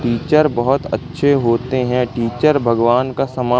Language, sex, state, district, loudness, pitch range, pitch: Hindi, male, Madhya Pradesh, Katni, -16 LUFS, 120-140 Hz, 125 Hz